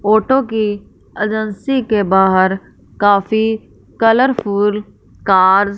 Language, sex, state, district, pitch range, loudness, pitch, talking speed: Hindi, female, Punjab, Fazilka, 200-220 Hz, -15 LUFS, 210 Hz, 95 wpm